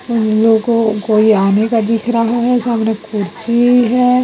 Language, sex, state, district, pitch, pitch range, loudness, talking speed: Hindi, female, Chhattisgarh, Raipur, 230 Hz, 215-240 Hz, -13 LUFS, 140 wpm